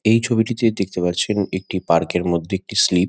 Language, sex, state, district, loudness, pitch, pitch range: Bengali, male, West Bengal, Kolkata, -20 LUFS, 95 Hz, 90-110 Hz